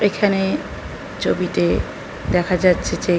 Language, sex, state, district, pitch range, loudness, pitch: Bengali, female, West Bengal, North 24 Parganas, 180-200 Hz, -20 LUFS, 185 Hz